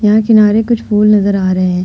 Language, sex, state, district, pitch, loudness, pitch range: Hindi, female, Uttar Pradesh, Hamirpur, 210 Hz, -11 LUFS, 195-220 Hz